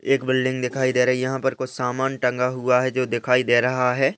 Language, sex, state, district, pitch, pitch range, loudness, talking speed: Hindi, male, Rajasthan, Churu, 130 Hz, 125-130 Hz, -21 LUFS, 260 wpm